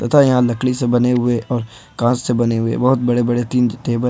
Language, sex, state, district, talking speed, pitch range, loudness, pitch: Hindi, male, Jharkhand, Ranchi, 235 wpm, 120-125 Hz, -17 LUFS, 120 Hz